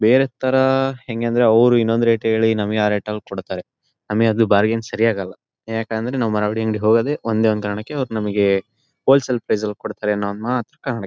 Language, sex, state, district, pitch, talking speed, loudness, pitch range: Kannada, male, Karnataka, Shimoga, 115 Hz, 195 wpm, -19 LUFS, 105-120 Hz